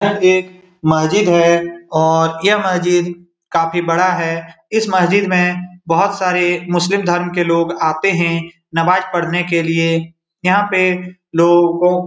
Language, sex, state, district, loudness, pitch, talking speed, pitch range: Hindi, male, Bihar, Supaul, -15 LUFS, 175 Hz, 145 wpm, 165-185 Hz